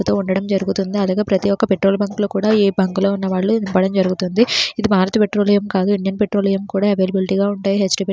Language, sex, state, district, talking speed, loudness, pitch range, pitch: Telugu, female, Andhra Pradesh, Srikakulam, 200 wpm, -17 LUFS, 190-205 Hz, 195 Hz